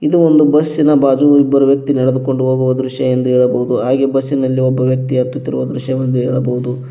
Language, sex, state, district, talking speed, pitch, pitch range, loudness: Kannada, male, Karnataka, Koppal, 150 wpm, 130 Hz, 130-135 Hz, -14 LUFS